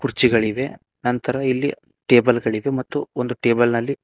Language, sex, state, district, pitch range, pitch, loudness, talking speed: Kannada, male, Karnataka, Koppal, 120-135 Hz, 125 Hz, -20 LUFS, 135 wpm